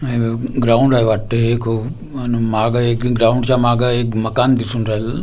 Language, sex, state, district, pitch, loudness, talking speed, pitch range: Marathi, male, Maharashtra, Gondia, 120 Hz, -16 LUFS, 160 wpm, 115-125 Hz